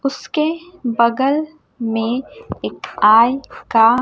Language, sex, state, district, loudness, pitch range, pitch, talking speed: Hindi, male, Chhattisgarh, Raipur, -17 LUFS, 230-305 Hz, 255 Hz, 90 wpm